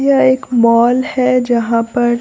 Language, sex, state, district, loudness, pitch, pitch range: Hindi, male, Bihar, Katihar, -13 LUFS, 245 Hz, 235-260 Hz